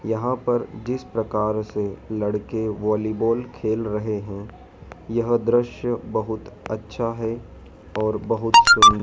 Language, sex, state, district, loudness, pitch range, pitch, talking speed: Hindi, male, Madhya Pradesh, Dhar, -22 LUFS, 105-120 Hz, 110 Hz, 120 wpm